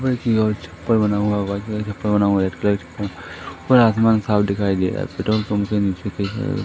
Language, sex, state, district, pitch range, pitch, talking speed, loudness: Hindi, male, Madhya Pradesh, Katni, 100-110 Hz, 105 Hz, 180 wpm, -20 LUFS